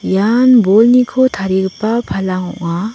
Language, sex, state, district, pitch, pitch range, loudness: Garo, female, Meghalaya, West Garo Hills, 210 Hz, 190-240 Hz, -13 LUFS